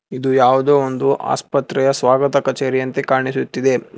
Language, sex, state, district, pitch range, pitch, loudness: Kannada, male, Karnataka, Bangalore, 130-135 Hz, 135 Hz, -17 LUFS